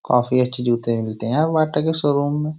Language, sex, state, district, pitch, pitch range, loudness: Hindi, male, Uttar Pradesh, Jyotiba Phule Nagar, 140 Hz, 120-155 Hz, -20 LUFS